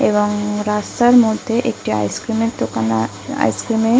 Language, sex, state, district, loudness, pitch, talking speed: Bengali, female, West Bengal, Kolkata, -17 LUFS, 210 Hz, 180 wpm